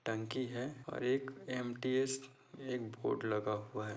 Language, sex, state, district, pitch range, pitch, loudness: Hindi, male, Maharashtra, Nagpur, 110-130 Hz, 125 Hz, -39 LUFS